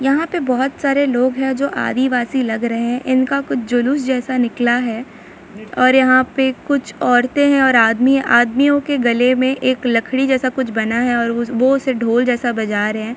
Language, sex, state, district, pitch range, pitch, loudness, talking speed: Hindi, female, Jharkhand, Sahebganj, 235-265 Hz, 255 Hz, -16 LUFS, 190 wpm